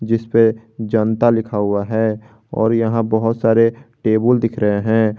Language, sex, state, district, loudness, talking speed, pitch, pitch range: Hindi, male, Jharkhand, Garhwa, -17 LUFS, 150 wpm, 110 Hz, 110-115 Hz